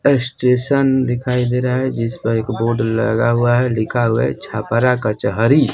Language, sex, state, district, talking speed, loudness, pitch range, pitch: Hindi, male, Bihar, Kaimur, 175 wpm, -17 LUFS, 115-125 Hz, 120 Hz